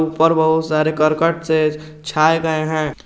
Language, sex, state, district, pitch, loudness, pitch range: Hindi, male, Jharkhand, Garhwa, 155 Hz, -17 LUFS, 155-160 Hz